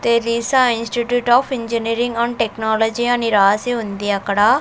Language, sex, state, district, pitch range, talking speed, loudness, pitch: Telugu, female, Andhra Pradesh, Sri Satya Sai, 220-240 Hz, 130 wpm, -17 LUFS, 235 Hz